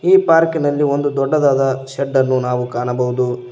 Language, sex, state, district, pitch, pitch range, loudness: Kannada, male, Karnataka, Koppal, 135 Hz, 125-145 Hz, -16 LUFS